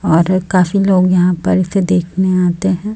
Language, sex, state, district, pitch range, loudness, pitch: Hindi, female, Chhattisgarh, Raipur, 180-190 Hz, -13 LUFS, 185 Hz